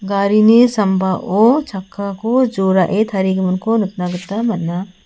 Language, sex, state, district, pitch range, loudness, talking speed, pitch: Garo, female, Meghalaya, South Garo Hills, 190-220 Hz, -15 LUFS, 95 wpm, 200 Hz